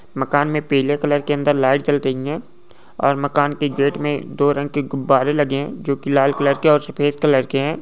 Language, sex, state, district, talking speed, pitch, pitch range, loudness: Hindi, male, Goa, North and South Goa, 240 wpm, 145 Hz, 140-145 Hz, -18 LUFS